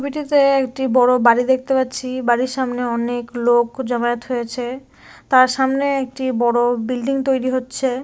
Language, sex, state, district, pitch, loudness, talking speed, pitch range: Bengali, female, West Bengal, Dakshin Dinajpur, 255 Hz, -18 LUFS, 140 wpm, 245-265 Hz